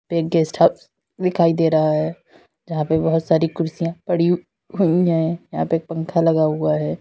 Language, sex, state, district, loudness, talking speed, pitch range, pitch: Hindi, female, Uttar Pradesh, Lalitpur, -19 LUFS, 180 wpm, 160-170 Hz, 165 Hz